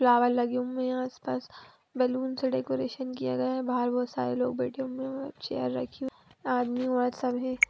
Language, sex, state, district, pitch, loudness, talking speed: Magahi, female, Bihar, Gaya, 250 Hz, -30 LUFS, 220 wpm